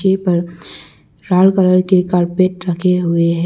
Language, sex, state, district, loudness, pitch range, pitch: Hindi, male, Arunachal Pradesh, Lower Dibang Valley, -14 LUFS, 170-185 Hz, 180 Hz